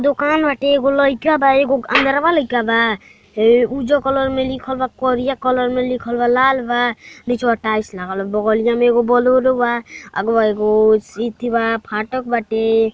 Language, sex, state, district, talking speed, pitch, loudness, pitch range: Bhojpuri, male, Uttar Pradesh, Deoria, 170 wpm, 245 Hz, -16 LUFS, 225-265 Hz